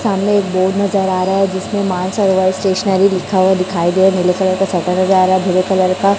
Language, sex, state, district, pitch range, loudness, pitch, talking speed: Hindi, male, Chhattisgarh, Raipur, 185-195 Hz, -14 LUFS, 190 Hz, 235 wpm